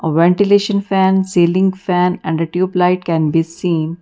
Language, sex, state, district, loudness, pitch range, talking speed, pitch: English, female, Karnataka, Bangalore, -15 LUFS, 165-190 Hz, 165 wpm, 180 Hz